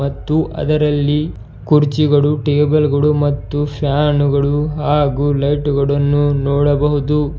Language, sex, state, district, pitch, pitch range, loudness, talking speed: Kannada, male, Karnataka, Bidar, 145 Hz, 140-150 Hz, -15 LUFS, 95 wpm